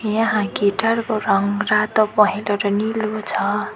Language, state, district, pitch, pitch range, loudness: Nepali, West Bengal, Darjeeling, 215 Hz, 205-220 Hz, -19 LUFS